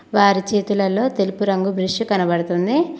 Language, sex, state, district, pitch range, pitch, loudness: Telugu, female, Telangana, Mahabubabad, 190-210 Hz, 200 Hz, -19 LUFS